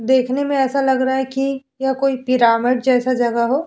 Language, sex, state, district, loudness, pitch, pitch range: Hindi, female, Uttar Pradesh, Hamirpur, -18 LUFS, 265 Hz, 250-270 Hz